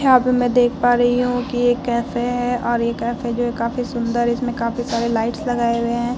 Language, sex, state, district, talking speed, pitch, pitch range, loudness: Hindi, female, Bihar, Vaishali, 250 wpm, 240 Hz, 235-245 Hz, -19 LUFS